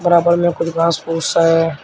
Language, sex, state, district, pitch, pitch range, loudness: Hindi, male, Uttar Pradesh, Shamli, 165 Hz, 165-170 Hz, -15 LUFS